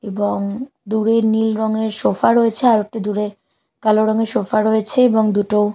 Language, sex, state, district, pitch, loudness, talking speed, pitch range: Bengali, female, Bihar, Katihar, 220 Hz, -17 LUFS, 155 wpm, 210-225 Hz